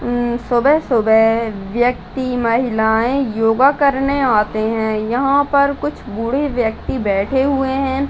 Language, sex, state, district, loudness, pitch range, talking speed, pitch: Hindi, female, Bihar, Muzaffarpur, -16 LUFS, 225-275 Hz, 120 wpm, 245 Hz